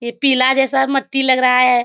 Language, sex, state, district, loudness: Hindi, female, Bihar, Lakhisarai, -14 LUFS